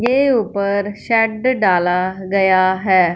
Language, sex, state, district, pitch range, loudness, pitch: Hindi, female, Punjab, Fazilka, 185-225 Hz, -16 LUFS, 200 Hz